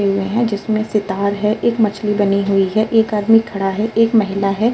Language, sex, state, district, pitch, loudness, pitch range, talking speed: Hindi, female, Uttar Pradesh, Jalaun, 210 Hz, -16 LUFS, 200-225 Hz, 215 wpm